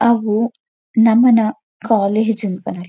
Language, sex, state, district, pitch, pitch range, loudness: Tulu, female, Karnataka, Dakshina Kannada, 225 Hz, 215-235 Hz, -16 LUFS